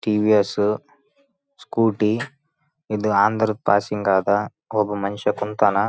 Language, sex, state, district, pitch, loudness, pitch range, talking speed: Kannada, male, Karnataka, Raichur, 105 Hz, -21 LUFS, 105-140 Hz, 90 wpm